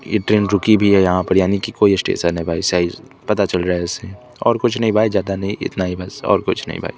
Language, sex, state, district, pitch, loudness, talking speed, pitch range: Hindi, male, Chandigarh, Chandigarh, 100 Hz, -17 LUFS, 285 wpm, 90-105 Hz